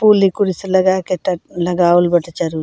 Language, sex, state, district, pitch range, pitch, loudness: Bhojpuri, female, Bihar, Muzaffarpur, 175-190 Hz, 185 Hz, -16 LUFS